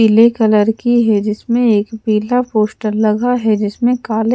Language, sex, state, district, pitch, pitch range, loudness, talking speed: Hindi, female, Odisha, Sambalpur, 220 Hz, 215-240 Hz, -14 LUFS, 165 wpm